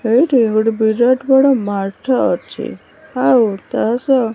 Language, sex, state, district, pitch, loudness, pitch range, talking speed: Odia, female, Odisha, Malkangiri, 235 Hz, -15 LUFS, 220-260 Hz, 140 wpm